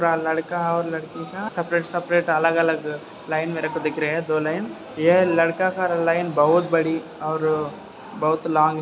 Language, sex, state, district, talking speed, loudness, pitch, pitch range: Hindi, male, Maharashtra, Dhule, 155 wpm, -22 LUFS, 160 Hz, 155-170 Hz